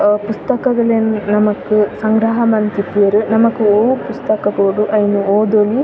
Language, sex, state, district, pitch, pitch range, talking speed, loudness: Tulu, female, Karnataka, Dakshina Kannada, 215 Hz, 205-225 Hz, 125 wpm, -14 LUFS